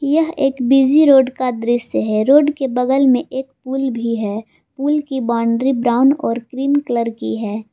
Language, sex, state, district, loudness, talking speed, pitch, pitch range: Hindi, female, Jharkhand, Palamu, -16 LUFS, 185 wpm, 260 Hz, 235-275 Hz